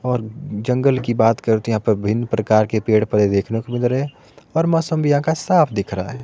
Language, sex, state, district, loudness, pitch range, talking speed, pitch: Hindi, male, Himachal Pradesh, Shimla, -19 LUFS, 110-140 Hz, 260 wpm, 120 Hz